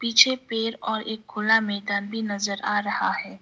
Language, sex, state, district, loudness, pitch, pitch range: Hindi, female, Sikkim, Gangtok, -24 LUFS, 215 Hz, 200-225 Hz